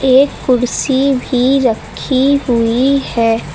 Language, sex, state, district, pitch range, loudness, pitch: Hindi, female, Uttar Pradesh, Lucknow, 240-270 Hz, -13 LUFS, 260 Hz